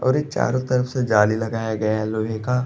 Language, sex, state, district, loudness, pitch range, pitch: Hindi, male, Chhattisgarh, Bastar, -21 LUFS, 110-125 Hz, 110 Hz